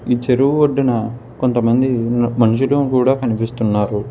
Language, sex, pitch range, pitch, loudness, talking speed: Telugu, male, 115-130 Hz, 120 Hz, -16 LUFS, 115 wpm